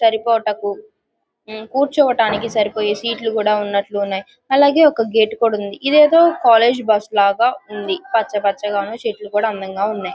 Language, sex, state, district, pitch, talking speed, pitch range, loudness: Telugu, female, Andhra Pradesh, Guntur, 220 Hz, 150 wpm, 205-245 Hz, -16 LUFS